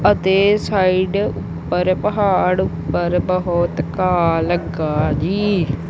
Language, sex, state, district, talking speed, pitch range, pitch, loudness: Punjabi, male, Punjab, Kapurthala, 90 wpm, 165-190 Hz, 180 Hz, -18 LUFS